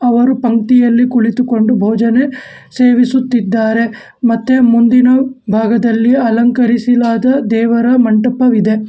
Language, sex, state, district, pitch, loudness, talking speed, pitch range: Kannada, male, Karnataka, Bangalore, 240 Hz, -11 LUFS, 65 wpm, 230-250 Hz